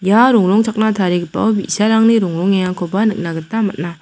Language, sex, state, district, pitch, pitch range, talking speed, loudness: Garo, female, Meghalaya, South Garo Hills, 200 Hz, 175-220 Hz, 120 wpm, -15 LUFS